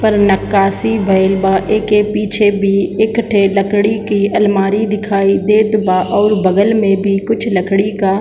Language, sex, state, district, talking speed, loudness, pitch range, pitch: Hindi, female, Jharkhand, Sahebganj, 175 wpm, -13 LUFS, 195-210 Hz, 205 Hz